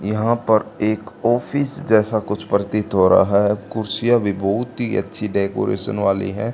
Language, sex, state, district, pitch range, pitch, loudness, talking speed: Hindi, male, Haryana, Charkhi Dadri, 100-115 Hz, 105 Hz, -19 LUFS, 155 wpm